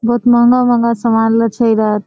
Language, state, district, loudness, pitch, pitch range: Surjapuri, Bihar, Kishanganj, -12 LUFS, 230 Hz, 225-240 Hz